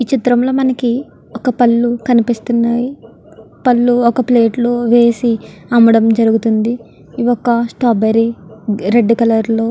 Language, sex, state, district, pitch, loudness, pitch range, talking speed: Telugu, female, Andhra Pradesh, Guntur, 235 Hz, -13 LUFS, 230-245 Hz, 115 wpm